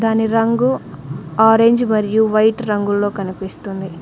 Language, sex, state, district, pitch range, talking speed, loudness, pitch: Telugu, female, Telangana, Mahabubabad, 195-225 Hz, 105 wpm, -16 LUFS, 215 Hz